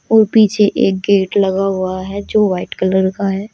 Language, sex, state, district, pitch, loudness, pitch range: Hindi, female, Uttar Pradesh, Shamli, 195 Hz, -15 LUFS, 190-205 Hz